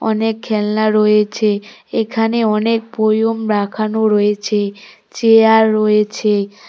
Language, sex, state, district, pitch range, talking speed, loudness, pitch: Bengali, female, West Bengal, Cooch Behar, 210-220 Hz, 90 wpm, -15 LUFS, 215 Hz